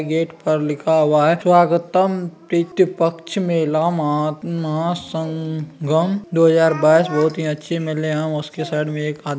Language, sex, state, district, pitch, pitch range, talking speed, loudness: Magahi, male, Bihar, Gaya, 160 Hz, 155-170 Hz, 165 wpm, -18 LUFS